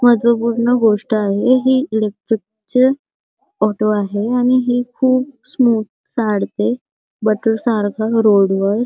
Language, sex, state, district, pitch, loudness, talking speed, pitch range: Marathi, female, Maharashtra, Sindhudurg, 225 Hz, -16 LUFS, 115 wpm, 210-250 Hz